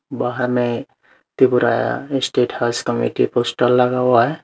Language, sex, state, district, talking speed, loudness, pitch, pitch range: Hindi, male, Tripura, Unakoti, 135 wpm, -18 LUFS, 125 Hz, 120-125 Hz